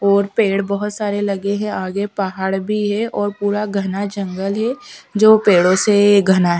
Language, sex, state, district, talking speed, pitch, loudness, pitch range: Hindi, female, Bihar, Patna, 190 wpm, 200 Hz, -17 LUFS, 195-210 Hz